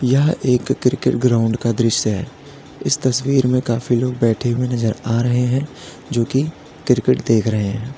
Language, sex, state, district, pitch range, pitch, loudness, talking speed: Hindi, male, Uttar Pradesh, Lalitpur, 115-135 Hz, 125 Hz, -18 LUFS, 175 wpm